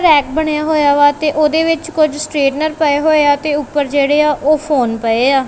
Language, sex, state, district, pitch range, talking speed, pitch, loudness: Punjabi, female, Punjab, Kapurthala, 285-310 Hz, 220 wpm, 295 Hz, -13 LUFS